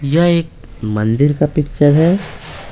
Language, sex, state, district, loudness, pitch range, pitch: Hindi, male, Bihar, Patna, -14 LUFS, 115-165 Hz, 145 Hz